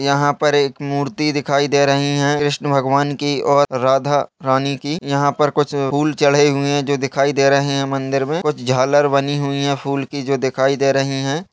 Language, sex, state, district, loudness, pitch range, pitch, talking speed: Hindi, male, Chhattisgarh, Bastar, -17 LUFS, 140-145 Hz, 140 Hz, 215 wpm